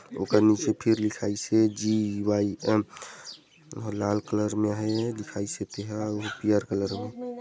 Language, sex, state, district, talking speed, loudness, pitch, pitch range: Chhattisgarhi, male, Chhattisgarh, Sarguja, 145 wpm, -27 LUFS, 105 Hz, 105-110 Hz